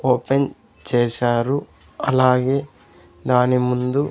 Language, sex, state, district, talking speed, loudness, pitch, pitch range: Telugu, male, Andhra Pradesh, Sri Satya Sai, 90 wpm, -20 LUFS, 125 Hz, 125-135 Hz